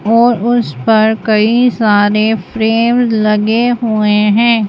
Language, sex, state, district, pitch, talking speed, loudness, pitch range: Hindi, female, Madhya Pradesh, Bhopal, 220 Hz, 115 wpm, -11 LUFS, 215-235 Hz